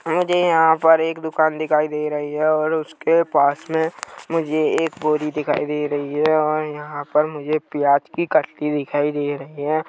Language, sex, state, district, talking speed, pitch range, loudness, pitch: Hindi, male, Chhattisgarh, Rajnandgaon, 190 wpm, 150-160 Hz, -20 LUFS, 155 Hz